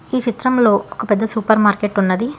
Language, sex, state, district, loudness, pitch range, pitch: Telugu, female, Telangana, Hyderabad, -16 LUFS, 205-235 Hz, 220 Hz